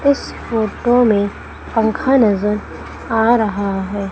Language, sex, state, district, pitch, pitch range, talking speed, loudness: Hindi, female, Madhya Pradesh, Umaria, 220 Hz, 205-240 Hz, 115 wpm, -17 LUFS